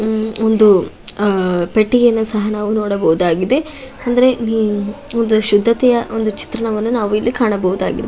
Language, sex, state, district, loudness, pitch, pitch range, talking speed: Kannada, female, Karnataka, Shimoga, -15 LUFS, 220 Hz, 205-235 Hz, 105 wpm